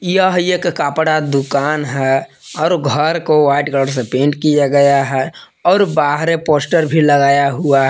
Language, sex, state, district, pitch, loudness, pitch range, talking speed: Hindi, male, Jharkhand, Palamu, 145 Hz, -14 LUFS, 140-160 Hz, 160 wpm